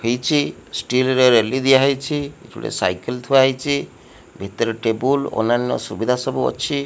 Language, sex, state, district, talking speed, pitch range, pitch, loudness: Odia, male, Odisha, Malkangiri, 130 wpm, 115-140 Hz, 130 Hz, -19 LUFS